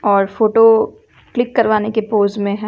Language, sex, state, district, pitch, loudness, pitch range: Hindi, female, Bihar, West Champaran, 215 Hz, -15 LUFS, 205-225 Hz